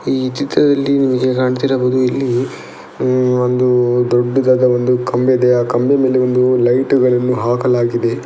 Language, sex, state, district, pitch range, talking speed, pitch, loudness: Kannada, male, Karnataka, Dakshina Kannada, 125-130 Hz, 130 wpm, 125 Hz, -14 LUFS